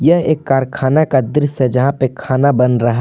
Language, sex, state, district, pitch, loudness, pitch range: Hindi, male, Jharkhand, Palamu, 135 Hz, -14 LUFS, 130-150 Hz